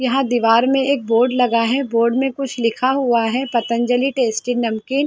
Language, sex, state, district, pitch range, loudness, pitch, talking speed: Hindi, female, Chhattisgarh, Sarguja, 230-265 Hz, -17 LUFS, 245 Hz, 200 wpm